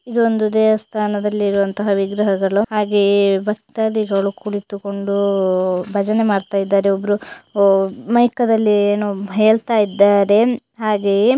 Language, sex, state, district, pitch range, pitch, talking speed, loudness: Kannada, female, Karnataka, Dakshina Kannada, 200-215 Hz, 205 Hz, 80 wpm, -17 LUFS